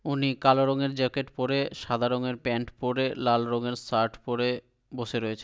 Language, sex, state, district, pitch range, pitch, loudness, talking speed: Bengali, male, West Bengal, Malda, 120-130 Hz, 125 Hz, -28 LUFS, 165 wpm